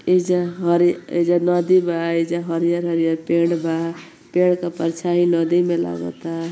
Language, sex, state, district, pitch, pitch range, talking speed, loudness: Bhojpuri, female, Uttar Pradesh, Ghazipur, 170 Hz, 165-175 Hz, 140 wpm, -19 LUFS